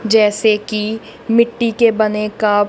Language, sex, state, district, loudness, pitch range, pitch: Hindi, female, Punjab, Kapurthala, -15 LUFS, 210-230 Hz, 220 Hz